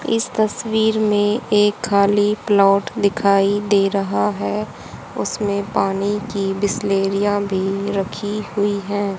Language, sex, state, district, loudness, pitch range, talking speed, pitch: Hindi, female, Haryana, Jhajjar, -19 LUFS, 195-210 Hz, 120 wpm, 205 Hz